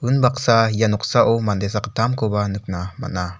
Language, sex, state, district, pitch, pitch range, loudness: Garo, male, Meghalaya, South Garo Hills, 110 Hz, 100-115 Hz, -19 LUFS